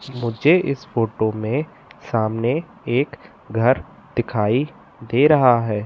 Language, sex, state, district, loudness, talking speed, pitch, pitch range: Hindi, male, Madhya Pradesh, Katni, -20 LUFS, 110 wpm, 120 Hz, 115-145 Hz